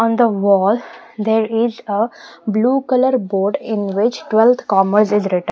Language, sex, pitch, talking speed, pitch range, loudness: English, female, 220 Hz, 165 wpm, 200-235 Hz, -16 LUFS